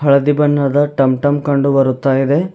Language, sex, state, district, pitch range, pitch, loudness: Kannada, male, Karnataka, Bidar, 135-145 Hz, 140 Hz, -14 LUFS